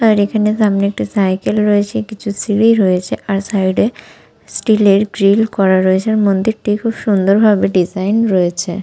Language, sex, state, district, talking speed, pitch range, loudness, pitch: Bengali, female, West Bengal, Malda, 165 wpm, 190-215 Hz, -14 LUFS, 205 Hz